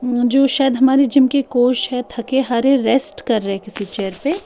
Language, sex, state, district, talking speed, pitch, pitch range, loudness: Hindi, female, Bihar, Patna, 230 wpm, 255 Hz, 235-270 Hz, -16 LUFS